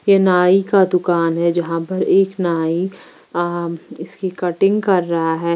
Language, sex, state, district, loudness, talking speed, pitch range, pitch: Hindi, female, Bihar, Patna, -17 LUFS, 160 wpm, 170-190 Hz, 175 Hz